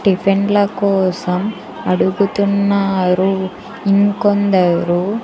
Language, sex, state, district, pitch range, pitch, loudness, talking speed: Telugu, female, Andhra Pradesh, Sri Satya Sai, 185-200 Hz, 195 Hz, -16 LUFS, 45 wpm